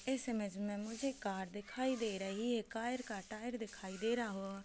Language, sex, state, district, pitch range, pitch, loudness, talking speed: Hindi, female, Chhattisgarh, Kabirdham, 200-240 Hz, 225 Hz, -41 LUFS, 220 wpm